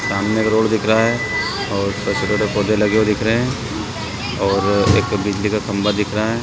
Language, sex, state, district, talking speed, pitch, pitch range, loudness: Hindi, male, Chhattisgarh, Raigarh, 215 wpm, 105 Hz, 100-110 Hz, -18 LUFS